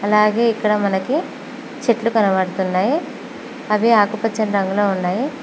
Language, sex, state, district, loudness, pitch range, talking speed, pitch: Telugu, female, Telangana, Mahabubabad, -18 LUFS, 205-260 Hz, 100 wpm, 220 Hz